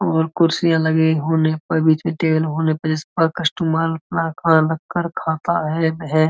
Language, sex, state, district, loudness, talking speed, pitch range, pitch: Hindi, male, Uttar Pradesh, Muzaffarnagar, -19 LUFS, 145 wpm, 160-165 Hz, 160 Hz